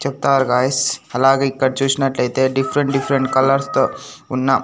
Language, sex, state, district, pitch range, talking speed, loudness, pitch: Telugu, male, Andhra Pradesh, Annamaya, 130-135 Hz, 155 wpm, -17 LUFS, 135 Hz